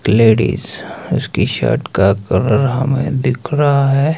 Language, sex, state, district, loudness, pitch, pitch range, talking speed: Hindi, male, Himachal Pradesh, Shimla, -15 LUFS, 135 Hz, 110-140 Hz, 130 wpm